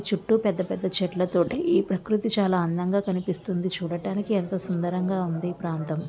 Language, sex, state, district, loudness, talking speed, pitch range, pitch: Telugu, female, Andhra Pradesh, Visakhapatnam, -26 LUFS, 170 wpm, 175-200 Hz, 185 Hz